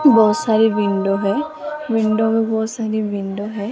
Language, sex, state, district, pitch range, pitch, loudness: Hindi, female, Rajasthan, Jaipur, 205-225 Hz, 220 Hz, -18 LUFS